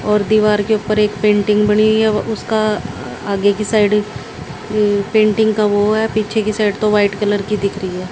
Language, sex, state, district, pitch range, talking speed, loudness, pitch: Hindi, female, Haryana, Jhajjar, 205-215 Hz, 200 wpm, -15 LUFS, 210 Hz